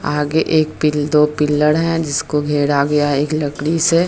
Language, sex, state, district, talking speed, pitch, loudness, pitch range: Hindi, female, Bihar, Jahanabad, 205 wpm, 150 Hz, -16 LUFS, 145-155 Hz